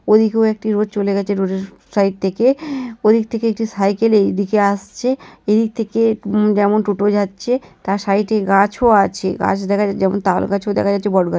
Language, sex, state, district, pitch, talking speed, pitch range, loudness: Bengali, female, West Bengal, North 24 Parganas, 205 Hz, 170 wpm, 200-220 Hz, -17 LUFS